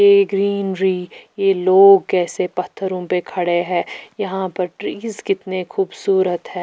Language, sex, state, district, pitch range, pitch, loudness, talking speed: Hindi, female, Chhattisgarh, Raipur, 180-195 Hz, 190 Hz, -18 LUFS, 135 wpm